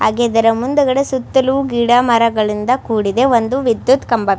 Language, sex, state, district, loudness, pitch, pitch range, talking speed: Kannada, female, Karnataka, Mysore, -14 LUFS, 240 Hz, 225-260 Hz, 150 wpm